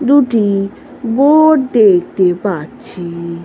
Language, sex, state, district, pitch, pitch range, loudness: Bengali, female, West Bengal, Malda, 205 Hz, 175-260 Hz, -12 LUFS